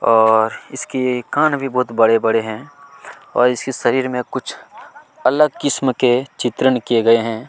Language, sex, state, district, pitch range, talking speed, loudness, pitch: Hindi, male, Chhattisgarh, Kabirdham, 115-135 Hz, 150 wpm, -17 LUFS, 125 Hz